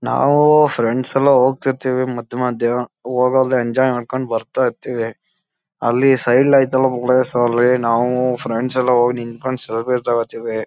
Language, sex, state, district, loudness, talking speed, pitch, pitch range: Kannada, male, Karnataka, Chamarajanagar, -17 LUFS, 100 wpm, 125 Hz, 120-130 Hz